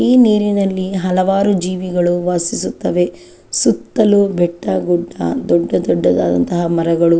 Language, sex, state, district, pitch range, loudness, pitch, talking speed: Kannada, female, Karnataka, Chamarajanagar, 170-195 Hz, -15 LUFS, 175 Hz, 100 wpm